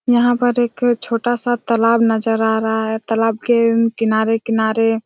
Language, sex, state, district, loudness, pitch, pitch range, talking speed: Hindi, female, Chhattisgarh, Raigarh, -17 LUFS, 230 Hz, 225-240 Hz, 155 wpm